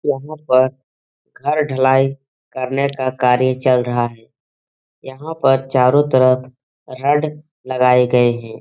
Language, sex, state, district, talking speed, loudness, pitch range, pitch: Hindi, male, Bihar, Jahanabad, 125 wpm, -16 LUFS, 125-140 Hz, 130 Hz